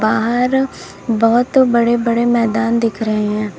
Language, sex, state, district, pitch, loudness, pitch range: Hindi, female, Uttar Pradesh, Lalitpur, 230 Hz, -15 LUFS, 220-240 Hz